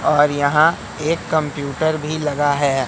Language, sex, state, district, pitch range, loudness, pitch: Hindi, male, Madhya Pradesh, Katni, 145-155 Hz, -18 LUFS, 145 Hz